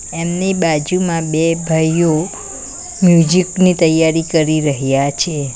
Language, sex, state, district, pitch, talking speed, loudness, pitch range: Gujarati, female, Gujarat, Valsad, 165 Hz, 110 wpm, -14 LUFS, 155-175 Hz